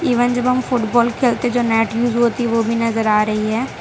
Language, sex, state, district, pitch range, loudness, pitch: Hindi, female, Gujarat, Valsad, 225-245 Hz, -17 LUFS, 235 Hz